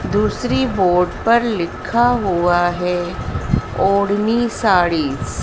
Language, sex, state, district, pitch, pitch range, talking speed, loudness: Hindi, female, Madhya Pradesh, Dhar, 180 Hz, 175-225 Hz, 100 wpm, -17 LUFS